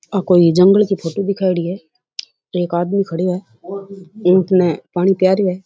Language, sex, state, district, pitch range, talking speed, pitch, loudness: Rajasthani, female, Rajasthan, Churu, 175-195 Hz, 180 wpm, 185 Hz, -16 LUFS